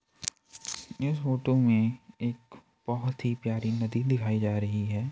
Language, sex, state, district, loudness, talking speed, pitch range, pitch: Hindi, male, Uttar Pradesh, Budaun, -30 LUFS, 140 wpm, 110-130 Hz, 120 Hz